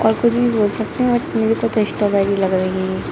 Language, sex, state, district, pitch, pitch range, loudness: Hindi, female, Jharkhand, Jamtara, 220 Hz, 200-235 Hz, -18 LUFS